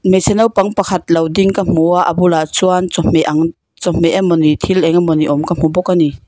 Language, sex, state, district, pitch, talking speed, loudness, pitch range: Mizo, female, Mizoram, Aizawl, 175 Hz, 250 wpm, -13 LUFS, 160-185 Hz